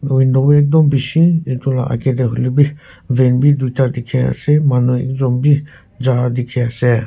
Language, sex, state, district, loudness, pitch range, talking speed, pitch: Nagamese, male, Nagaland, Kohima, -15 LUFS, 125-140 Hz, 180 wpm, 130 Hz